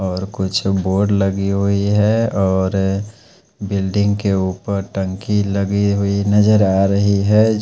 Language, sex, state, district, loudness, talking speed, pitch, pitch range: Hindi, male, Punjab, Pathankot, -17 LUFS, 140 wpm, 100 Hz, 95-100 Hz